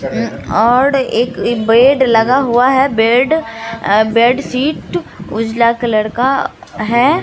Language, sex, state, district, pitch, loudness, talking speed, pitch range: Hindi, female, Bihar, Katihar, 240 Hz, -13 LUFS, 115 wpm, 225-265 Hz